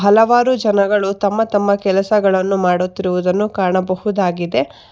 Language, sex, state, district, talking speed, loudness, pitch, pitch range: Kannada, female, Karnataka, Bangalore, 85 wpm, -16 LUFS, 200 Hz, 185-210 Hz